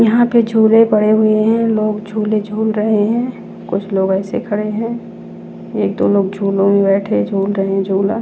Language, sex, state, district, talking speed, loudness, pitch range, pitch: Hindi, female, Chandigarh, Chandigarh, 190 wpm, -15 LUFS, 195-220 Hz, 210 Hz